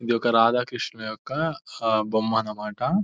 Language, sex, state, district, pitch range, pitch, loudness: Telugu, male, Telangana, Nalgonda, 110-125 Hz, 115 Hz, -25 LUFS